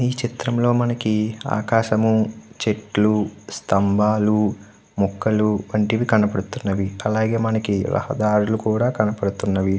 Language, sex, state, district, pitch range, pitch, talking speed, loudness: Telugu, male, Andhra Pradesh, Guntur, 105-110 Hz, 105 Hz, 90 wpm, -21 LUFS